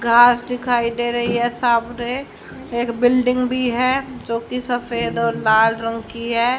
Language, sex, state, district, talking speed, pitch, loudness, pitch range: Hindi, female, Haryana, Rohtak, 155 wpm, 240 Hz, -19 LUFS, 235-250 Hz